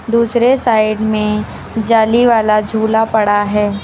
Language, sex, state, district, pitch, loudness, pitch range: Hindi, female, Uttar Pradesh, Lucknow, 220 Hz, -13 LUFS, 215-230 Hz